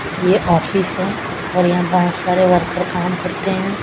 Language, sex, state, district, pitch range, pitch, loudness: Hindi, female, Chhattisgarh, Raipur, 180-185 Hz, 180 Hz, -17 LUFS